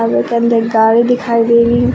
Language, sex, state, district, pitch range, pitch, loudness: Hindi, female, Uttar Pradesh, Lucknow, 220-235 Hz, 230 Hz, -12 LUFS